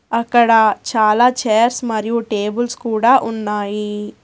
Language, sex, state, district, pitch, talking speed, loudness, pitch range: Telugu, female, Telangana, Hyderabad, 225 Hz, 100 wpm, -16 LUFS, 215-240 Hz